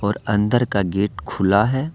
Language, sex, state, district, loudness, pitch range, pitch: Hindi, male, Jharkhand, Deoghar, -20 LUFS, 100-120 Hz, 105 Hz